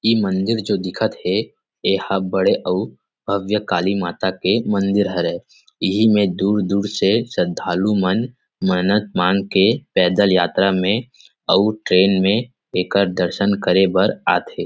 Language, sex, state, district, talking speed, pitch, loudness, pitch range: Chhattisgarhi, male, Chhattisgarh, Rajnandgaon, 145 wpm, 100 Hz, -18 LUFS, 95-105 Hz